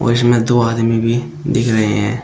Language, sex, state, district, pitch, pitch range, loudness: Hindi, male, Uttar Pradesh, Shamli, 120 Hz, 115-120 Hz, -15 LUFS